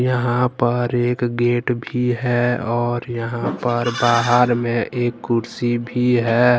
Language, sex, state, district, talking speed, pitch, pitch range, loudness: Hindi, male, Jharkhand, Ranchi, 135 wpm, 120 Hz, 120-125 Hz, -19 LUFS